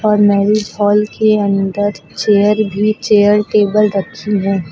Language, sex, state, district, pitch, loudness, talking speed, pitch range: Hindi, female, Uttar Pradesh, Lucknow, 205 Hz, -13 LUFS, 140 wpm, 200-210 Hz